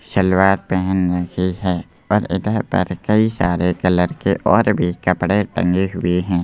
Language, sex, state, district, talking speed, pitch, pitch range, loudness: Hindi, male, Madhya Pradesh, Bhopal, 160 wpm, 90 Hz, 90-95 Hz, -18 LUFS